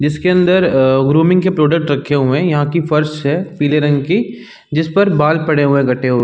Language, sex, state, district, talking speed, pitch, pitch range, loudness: Hindi, male, Chhattisgarh, Raigarh, 220 wpm, 150 Hz, 145-170 Hz, -13 LUFS